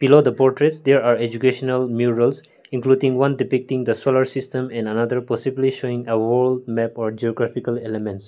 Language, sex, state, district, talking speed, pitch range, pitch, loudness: English, male, Nagaland, Kohima, 160 wpm, 115-130 Hz, 125 Hz, -20 LUFS